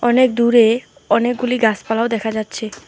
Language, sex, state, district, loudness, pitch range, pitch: Bengali, female, West Bengal, Alipurduar, -17 LUFS, 220-240 Hz, 235 Hz